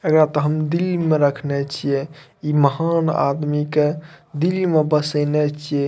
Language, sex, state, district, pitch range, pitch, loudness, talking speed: Maithili, male, Bihar, Madhepura, 145-160 Hz, 150 Hz, -19 LUFS, 155 wpm